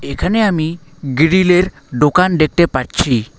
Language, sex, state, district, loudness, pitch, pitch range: Bengali, male, West Bengal, Alipurduar, -14 LUFS, 155 Hz, 140-180 Hz